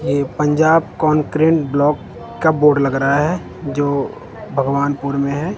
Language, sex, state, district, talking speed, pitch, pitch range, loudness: Hindi, male, Punjab, Kapurthala, 140 wpm, 145 Hz, 140-155 Hz, -17 LUFS